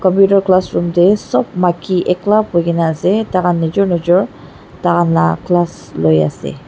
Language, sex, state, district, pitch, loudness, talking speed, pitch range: Nagamese, female, Nagaland, Dimapur, 180 Hz, -14 LUFS, 170 wpm, 165-190 Hz